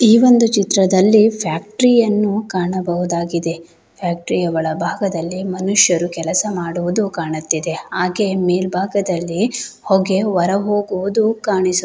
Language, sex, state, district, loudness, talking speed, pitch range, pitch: Kannada, female, Karnataka, Shimoga, -17 LUFS, 105 wpm, 170-205 Hz, 185 Hz